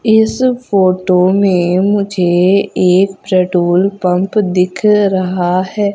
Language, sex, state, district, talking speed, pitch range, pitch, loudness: Hindi, female, Madhya Pradesh, Umaria, 100 wpm, 180-205 Hz, 190 Hz, -12 LUFS